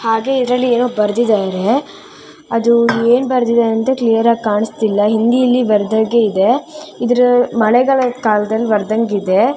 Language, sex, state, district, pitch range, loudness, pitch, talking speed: Kannada, female, Karnataka, Shimoga, 215-250 Hz, -14 LUFS, 230 Hz, 125 wpm